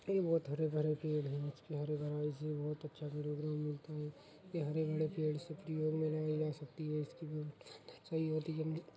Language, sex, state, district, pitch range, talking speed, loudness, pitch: Hindi, male, Uttar Pradesh, Jyotiba Phule Nagar, 150-155 Hz, 180 wpm, -40 LUFS, 155 Hz